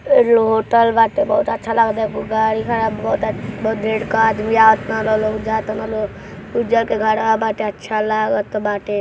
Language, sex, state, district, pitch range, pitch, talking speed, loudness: Hindi, female, Uttar Pradesh, Gorakhpur, 215-225 Hz, 220 Hz, 175 wpm, -17 LUFS